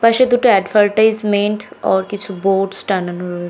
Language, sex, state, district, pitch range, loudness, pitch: Bengali, female, West Bengal, North 24 Parganas, 190-220 Hz, -16 LUFS, 205 Hz